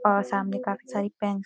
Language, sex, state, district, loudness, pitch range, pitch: Hindi, female, Uttarakhand, Uttarkashi, -28 LUFS, 195-205 Hz, 200 Hz